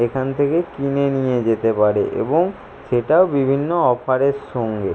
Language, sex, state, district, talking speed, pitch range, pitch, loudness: Bengali, male, West Bengal, Jalpaiguri, 145 wpm, 120-145 Hz, 135 Hz, -19 LUFS